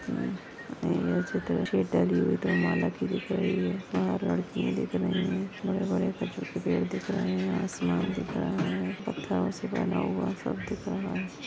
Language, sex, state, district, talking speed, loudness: Hindi, female, Maharashtra, Pune, 155 wpm, -30 LUFS